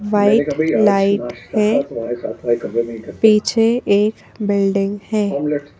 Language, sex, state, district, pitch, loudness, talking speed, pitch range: Hindi, female, Madhya Pradesh, Bhopal, 200 Hz, -17 LUFS, 70 wpm, 145-210 Hz